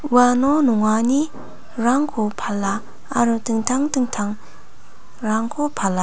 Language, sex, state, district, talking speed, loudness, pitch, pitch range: Garo, female, Meghalaya, North Garo Hills, 70 wpm, -20 LUFS, 235 Hz, 215-270 Hz